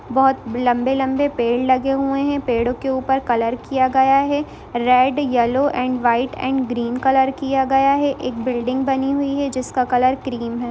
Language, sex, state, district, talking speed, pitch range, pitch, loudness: Hindi, female, Bihar, Saran, 180 wpm, 245-270 Hz, 260 Hz, -19 LUFS